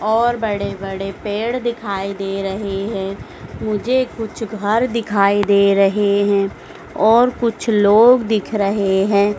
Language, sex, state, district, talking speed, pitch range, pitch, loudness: Hindi, female, Madhya Pradesh, Dhar, 135 wpm, 200-225 Hz, 205 Hz, -17 LUFS